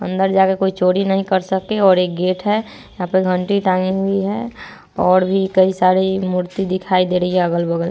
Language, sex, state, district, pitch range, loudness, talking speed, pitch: Hindi, female, Bihar, Vaishali, 180-195 Hz, -17 LUFS, 205 wpm, 185 Hz